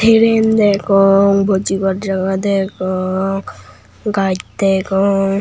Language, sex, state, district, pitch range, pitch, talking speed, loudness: Chakma, male, Tripura, Unakoti, 190-200 Hz, 195 Hz, 80 wpm, -15 LUFS